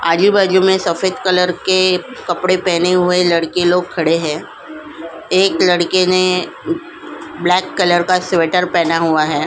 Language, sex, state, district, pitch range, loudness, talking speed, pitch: Hindi, female, Goa, North and South Goa, 170-185 Hz, -14 LUFS, 145 wpm, 180 Hz